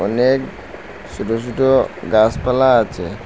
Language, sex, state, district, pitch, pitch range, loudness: Bengali, male, Assam, Hailakandi, 125 Hz, 115-130 Hz, -16 LUFS